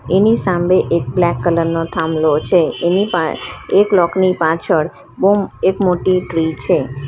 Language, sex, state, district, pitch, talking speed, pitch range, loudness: Gujarati, female, Gujarat, Valsad, 170 Hz, 160 wpm, 160-185 Hz, -15 LUFS